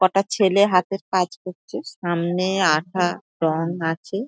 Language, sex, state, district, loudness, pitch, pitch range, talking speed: Bengali, female, West Bengal, Dakshin Dinajpur, -21 LUFS, 180 Hz, 165-195 Hz, 125 wpm